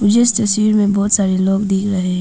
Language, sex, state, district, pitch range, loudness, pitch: Hindi, female, Arunachal Pradesh, Papum Pare, 195-215 Hz, -15 LUFS, 200 Hz